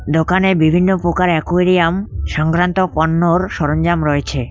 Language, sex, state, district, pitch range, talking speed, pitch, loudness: Bengali, male, West Bengal, Cooch Behar, 155-180 Hz, 105 wpm, 170 Hz, -15 LUFS